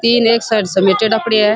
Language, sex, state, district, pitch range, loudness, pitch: Rajasthani, female, Rajasthan, Churu, 210-230 Hz, -13 LUFS, 220 Hz